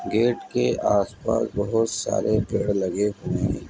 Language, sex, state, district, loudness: Hindi, male, Uttar Pradesh, Etah, -24 LUFS